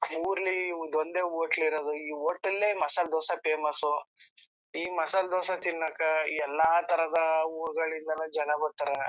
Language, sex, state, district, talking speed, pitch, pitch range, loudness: Kannada, male, Karnataka, Chamarajanagar, 125 wpm, 160 Hz, 155-175 Hz, -29 LUFS